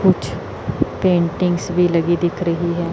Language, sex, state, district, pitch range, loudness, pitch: Hindi, female, Chandigarh, Chandigarh, 170-180 Hz, -19 LUFS, 175 Hz